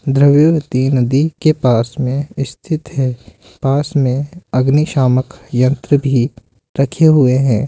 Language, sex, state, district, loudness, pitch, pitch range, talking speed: Hindi, male, Rajasthan, Jaipur, -14 LUFS, 135 Hz, 125-145 Hz, 125 wpm